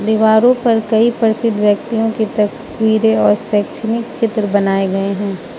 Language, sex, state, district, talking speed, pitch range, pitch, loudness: Hindi, female, Manipur, Imphal West, 140 wpm, 205-225 Hz, 220 Hz, -15 LUFS